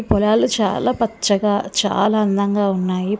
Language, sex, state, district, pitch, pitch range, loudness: Telugu, female, Andhra Pradesh, Visakhapatnam, 205 Hz, 200-215 Hz, -18 LUFS